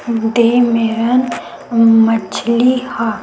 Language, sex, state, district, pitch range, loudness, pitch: Chhattisgarhi, female, Chhattisgarh, Sukma, 225-240 Hz, -13 LUFS, 230 Hz